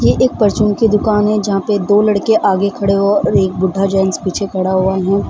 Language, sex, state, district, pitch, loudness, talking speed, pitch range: Hindi, female, Bihar, Samastipur, 200 Hz, -14 LUFS, 225 wpm, 190-210 Hz